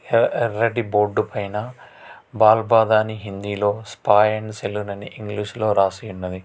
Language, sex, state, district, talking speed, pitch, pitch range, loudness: Telugu, male, Telangana, Hyderabad, 130 wpm, 105 Hz, 105-110 Hz, -20 LUFS